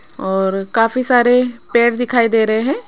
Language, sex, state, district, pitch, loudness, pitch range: Hindi, female, Rajasthan, Jaipur, 235 Hz, -15 LUFS, 220-245 Hz